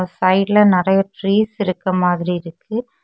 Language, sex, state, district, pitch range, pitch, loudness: Tamil, female, Tamil Nadu, Kanyakumari, 180-205 Hz, 190 Hz, -17 LUFS